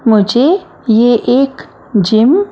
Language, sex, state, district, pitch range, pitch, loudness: Hindi, female, Maharashtra, Mumbai Suburban, 220-275 Hz, 245 Hz, -11 LUFS